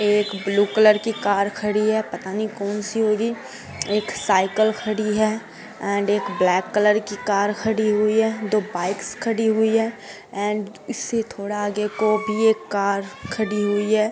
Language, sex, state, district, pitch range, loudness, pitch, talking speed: Hindi, female, Uttar Pradesh, Hamirpur, 205-220 Hz, -21 LUFS, 210 Hz, 175 wpm